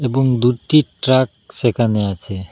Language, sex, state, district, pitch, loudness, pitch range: Bengali, male, Assam, Hailakandi, 120 Hz, -17 LUFS, 105-130 Hz